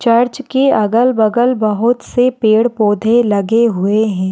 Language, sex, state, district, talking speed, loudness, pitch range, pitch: Hindi, female, Bihar, Saharsa, 125 wpm, -13 LUFS, 215-245 Hz, 230 Hz